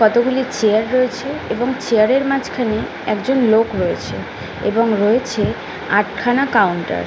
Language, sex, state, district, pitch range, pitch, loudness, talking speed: Bengali, female, West Bengal, Jhargram, 215-255 Hz, 230 Hz, -17 LUFS, 125 wpm